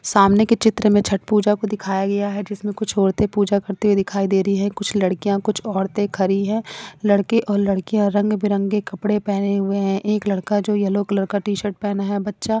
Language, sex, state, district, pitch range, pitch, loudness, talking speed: Hindi, female, Punjab, Kapurthala, 200-210 Hz, 205 Hz, -20 LUFS, 220 wpm